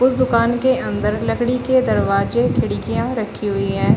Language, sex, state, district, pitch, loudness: Hindi, female, Uttar Pradesh, Shamli, 240 Hz, -18 LUFS